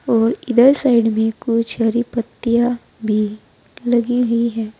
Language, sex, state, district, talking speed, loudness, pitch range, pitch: Hindi, female, Uttar Pradesh, Saharanpur, 140 wpm, -17 LUFS, 225-240 Hz, 235 Hz